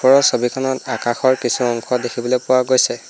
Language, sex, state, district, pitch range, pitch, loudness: Assamese, male, Assam, Hailakandi, 120-130 Hz, 125 Hz, -17 LUFS